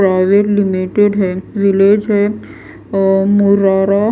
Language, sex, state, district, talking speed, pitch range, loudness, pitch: Hindi, female, Bihar, West Champaran, 115 wpm, 195-205 Hz, -13 LUFS, 200 Hz